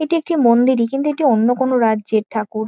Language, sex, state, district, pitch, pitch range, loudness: Bengali, female, West Bengal, Kolkata, 245 Hz, 220-280 Hz, -16 LUFS